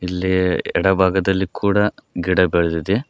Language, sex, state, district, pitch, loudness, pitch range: Kannada, male, Karnataka, Koppal, 95 Hz, -18 LUFS, 90-95 Hz